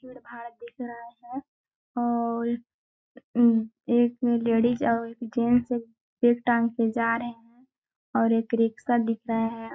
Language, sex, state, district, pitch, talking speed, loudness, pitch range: Hindi, female, Chhattisgarh, Balrampur, 235 Hz, 115 wpm, -25 LUFS, 230-240 Hz